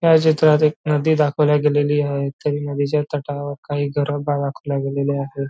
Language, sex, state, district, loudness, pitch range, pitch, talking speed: Marathi, male, Maharashtra, Nagpur, -19 LUFS, 140-150 Hz, 145 Hz, 165 wpm